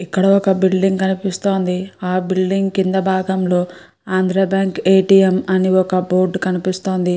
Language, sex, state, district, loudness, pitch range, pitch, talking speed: Telugu, female, Andhra Pradesh, Guntur, -16 LUFS, 185-190 Hz, 190 Hz, 140 wpm